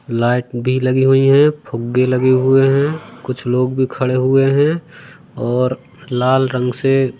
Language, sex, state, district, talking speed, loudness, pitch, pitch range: Hindi, male, Madhya Pradesh, Katni, 160 wpm, -15 LUFS, 130 Hz, 125-135 Hz